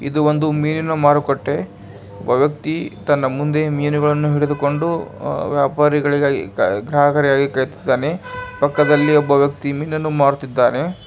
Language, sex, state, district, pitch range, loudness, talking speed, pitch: Kannada, male, Karnataka, Bijapur, 140-150 Hz, -17 LUFS, 85 wpm, 145 Hz